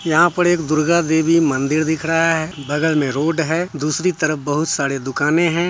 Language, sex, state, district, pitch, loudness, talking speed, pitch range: Hindi, male, Bihar, Muzaffarpur, 160 Hz, -18 LUFS, 200 wpm, 150-165 Hz